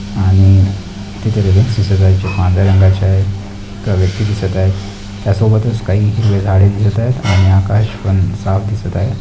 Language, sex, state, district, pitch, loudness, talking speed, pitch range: Marathi, male, Maharashtra, Pune, 100 Hz, -13 LUFS, 130 wpm, 95-105 Hz